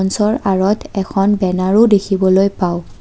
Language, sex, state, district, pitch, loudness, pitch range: Assamese, female, Assam, Kamrup Metropolitan, 195 Hz, -15 LUFS, 190-205 Hz